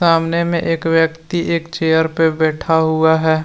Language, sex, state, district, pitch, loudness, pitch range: Hindi, male, Jharkhand, Deoghar, 165 Hz, -16 LUFS, 160-165 Hz